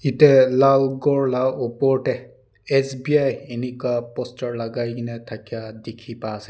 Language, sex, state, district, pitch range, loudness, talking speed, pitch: Nagamese, male, Nagaland, Dimapur, 115-135 Hz, -20 LUFS, 140 wpm, 125 Hz